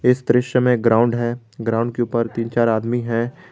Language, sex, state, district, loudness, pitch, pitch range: Hindi, male, Jharkhand, Garhwa, -19 LUFS, 120 Hz, 115-125 Hz